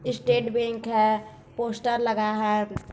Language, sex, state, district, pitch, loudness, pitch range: Hindi, female, Chhattisgarh, Bilaspur, 230 Hz, -25 LUFS, 215-235 Hz